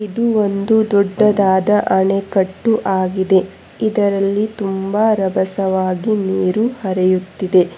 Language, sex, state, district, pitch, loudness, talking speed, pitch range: Kannada, female, Karnataka, Bangalore, 195 Hz, -16 LUFS, 75 wpm, 190-210 Hz